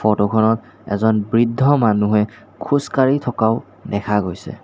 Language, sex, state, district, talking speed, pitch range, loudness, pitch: Assamese, male, Assam, Kamrup Metropolitan, 130 wpm, 105-115 Hz, -18 LUFS, 110 Hz